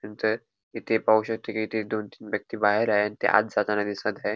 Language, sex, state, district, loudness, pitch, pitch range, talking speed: Marathi, male, Goa, North and South Goa, -26 LUFS, 110 Hz, 105-110 Hz, 205 wpm